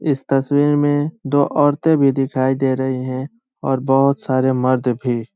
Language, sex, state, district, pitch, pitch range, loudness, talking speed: Hindi, male, Uttar Pradesh, Ghazipur, 135 Hz, 130-145 Hz, -18 LUFS, 170 wpm